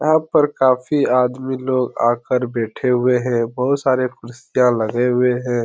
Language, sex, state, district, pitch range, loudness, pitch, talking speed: Hindi, male, Uttar Pradesh, Etah, 120-130 Hz, -18 LUFS, 125 Hz, 160 wpm